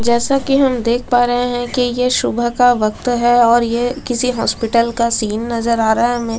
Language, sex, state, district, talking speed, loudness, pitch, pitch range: Hindi, female, Delhi, New Delhi, 225 wpm, -15 LUFS, 240 Hz, 235-245 Hz